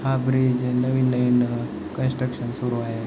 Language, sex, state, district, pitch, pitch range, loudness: Marathi, male, Maharashtra, Chandrapur, 125 Hz, 120-130 Hz, -23 LUFS